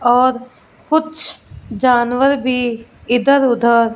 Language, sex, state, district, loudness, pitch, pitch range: Hindi, female, Punjab, Fazilka, -15 LUFS, 250 Hz, 240-275 Hz